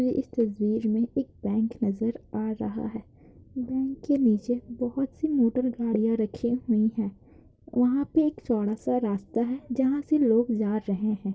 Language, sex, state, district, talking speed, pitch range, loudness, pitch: Hindi, female, Bihar, Kishanganj, 175 wpm, 220-260 Hz, -27 LUFS, 235 Hz